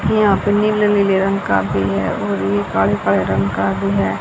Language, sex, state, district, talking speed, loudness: Hindi, female, Haryana, Jhajjar, 215 wpm, -17 LUFS